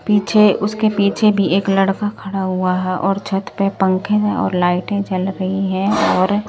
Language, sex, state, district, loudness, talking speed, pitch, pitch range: Hindi, male, Delhi, New Delhi, -17 LUFS, 175 wpm, 195 Hz, 185-205 Hz